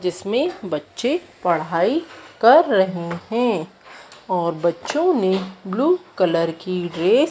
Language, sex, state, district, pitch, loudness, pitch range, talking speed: Hindi, female, Madhya Pradesh, Dhar, 190 Hz, -20 LUFS, 175-265 Hz, 115 wpm